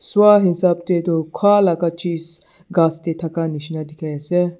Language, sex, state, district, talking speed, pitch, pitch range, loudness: Nagamese, male, Nagaland, Dimapur, 145 wpm, 170 Hz, 165-180 Hz, -18 LUFS